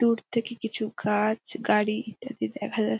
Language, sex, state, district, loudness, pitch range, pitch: Bengali, female, West Bengal, Dakshin Dinajpur, -28 LUFS, 210-230 Hz, 220 Hz